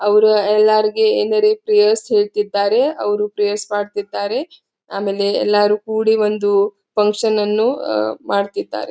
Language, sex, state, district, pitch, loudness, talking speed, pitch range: Kannada, female, Karnataka, Belgaum, 210 Hz, -17 LUFS, 95 wpm, 205-280 Hz